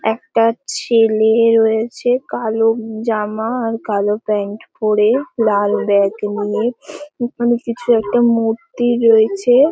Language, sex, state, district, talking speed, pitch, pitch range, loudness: Bengali, female, West Bengal, Paschim Medinipur, 110 wpm, 225 Hz, 215-240 Hz, -16 LUFS